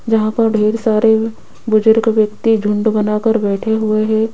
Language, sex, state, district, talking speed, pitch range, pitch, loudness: Hindi, female, Rajasthan, Jaipur, 165 wpm, 215-225 Hz, 220 Hz, -14 LUFS